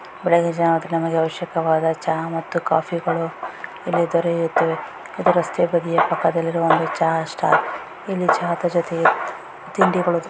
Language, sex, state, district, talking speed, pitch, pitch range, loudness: Kannada, female, Karnataka, Raichur, 120 wpm, 170 Hz, 165-170 Hz, -20 LUFS